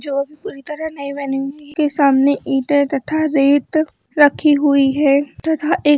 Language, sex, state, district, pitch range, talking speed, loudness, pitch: Hindi, female, Chhattisgarh, Bilaspur, 275-305 Hz, 170 wpm, -16 LUFS, 285 Hz